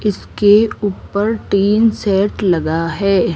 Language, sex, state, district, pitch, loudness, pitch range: Hindi, female, Rajasthan, Jaipur, 200 Hz, -15 LUFS, 190-210 Hz